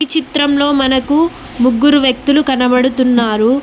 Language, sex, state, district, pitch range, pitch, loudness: Telugu, female, Telangana, Mahabubabad, 250-290 Hz, 265 Hz, -12 LUFS